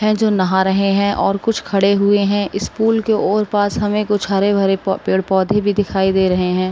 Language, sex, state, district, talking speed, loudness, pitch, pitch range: Hindi, female, Uttar Pradesh, Budaun, 225 wpm, -16 LUFS, 200 Hz, 190-210 Hz